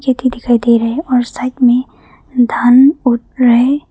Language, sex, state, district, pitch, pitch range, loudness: Hindi, female, Arunachal Pradesh, Papum Pare, 250 Hz, 240-260 Hz, -12 LUFS